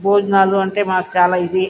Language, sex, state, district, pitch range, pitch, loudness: Telugu, female, Andhra Pradesh, Guntur, 185-195 Hz, 190 Hz, -15 LUFS